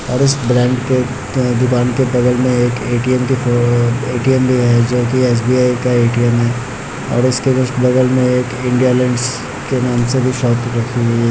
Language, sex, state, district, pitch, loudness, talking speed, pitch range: Hindi, male, Bihar, Muzaffarpur, 125 Hz, -14 LUFS, 195 wpm, 120-130 Hz